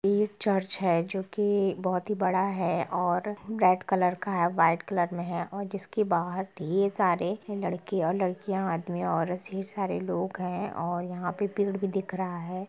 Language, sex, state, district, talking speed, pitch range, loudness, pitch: Hindi, female, Bihar, Gopalganj, 195 wpm, 175-200 Hz, -29 LUFS, 185 Hz